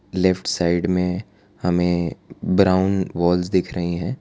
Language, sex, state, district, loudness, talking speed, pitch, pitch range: Hindi, male, Gujarat, Valsad, -21 LUFS, 130 wpm, 90 Hz, 85-95 Hz